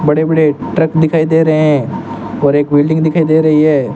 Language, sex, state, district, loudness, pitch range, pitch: Hindi, male, Rajasthan, Bikaner, -12 LUFS, 150-160 Hz, 155 Hz